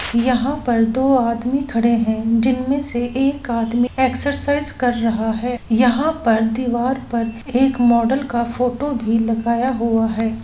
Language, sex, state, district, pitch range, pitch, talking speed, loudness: Hindi, female, Bihar, Gopalganj, 230-260 Hz, 245 Hz, 150 wpm, -18 LUFS